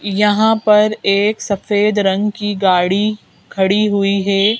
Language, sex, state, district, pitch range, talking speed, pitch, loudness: Hindi, female, Madhya Pradesh, Bhopal, 195-210 Hz, 130 wpm, 205 Hz, -15 LUFS